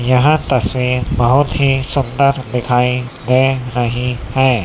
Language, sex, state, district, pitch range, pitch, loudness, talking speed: Hindi, female, Madhya Pradesh, Dhar, 125-135 Hz, 125 Hz, -15 LUFS, 115 wpm